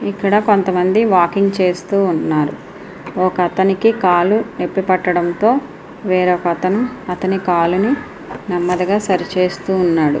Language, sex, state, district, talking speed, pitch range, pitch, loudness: Telugu, female, Andhra Pradesh, Srikakulam, 110 wpm, 180-200 Hz, 185 Hz, -16 LUFS